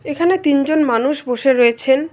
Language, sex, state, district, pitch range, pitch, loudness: Bengali, female, West Bengal, Alipurduar, 250-305 Hz, 280 Hz, -15 LUFS